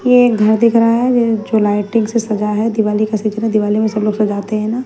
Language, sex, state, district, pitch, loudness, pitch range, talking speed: Hindi, female, Haryana, Jhajjar, 215 Hz, -14 LUFS, 210-230 Hz, 260 wpm